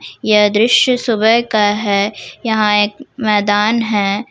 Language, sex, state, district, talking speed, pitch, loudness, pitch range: Hindi, female, Jharkhand, Ranchi, 125 wpm, 215 Hz, -14 LUFS, 205-230 Hz